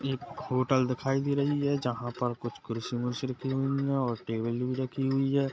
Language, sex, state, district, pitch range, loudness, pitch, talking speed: Hindi, male, Chhattisgarh, Kabirdham, 120-135 Hz, -30 LUFS, 130 Hz, 215 wpm